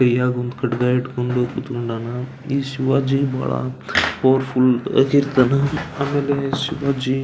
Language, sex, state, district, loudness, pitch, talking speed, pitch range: Kannada, male, Karnataka, Belgaum, -20 LUFS, 130 Hz, 90 wpm, 125-140 Hz